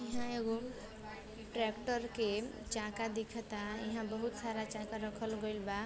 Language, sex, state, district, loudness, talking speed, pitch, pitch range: Bhojpuri, female, Uttar Pradesh, Varanasi, -40 LUFS, 135 wpm, 220 Hz, 215-230 Hz